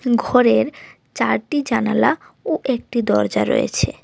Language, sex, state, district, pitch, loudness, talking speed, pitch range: Bengali, female, Tripura, West Tripura, 235 Hz, -19 LUFS, 105 wpm, 215-255 Hz